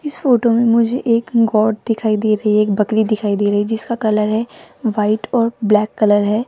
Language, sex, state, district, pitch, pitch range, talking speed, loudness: Hindi, female, Rajasthan, Jaipur, 220 Hz, 210-230 Hz, 220 wpm, -16 LUFS